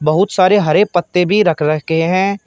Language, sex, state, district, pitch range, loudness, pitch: Hindi, male, Uttar Pradesh, Shamli, 160-195 Hz, -14 LUFS, 180 Hz